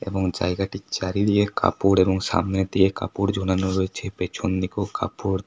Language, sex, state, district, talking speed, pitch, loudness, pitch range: Bengali, male, West Bengal, Paschim Medinipur, 155 wpm, 95 Hz, -23 LUFS, 95-100 Hz